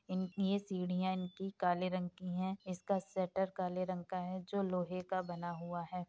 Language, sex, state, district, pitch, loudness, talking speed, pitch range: Hindi, female, Uttar Pradesh, Hamirpur, 185 Hz, -39 LUFS, 195 wpm, 180-190 Hz